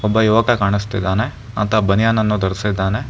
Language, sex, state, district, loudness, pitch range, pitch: Kannada, male, Karnataka, Bangalore, -17 LUFS, 100-110 Hz, 105 Hz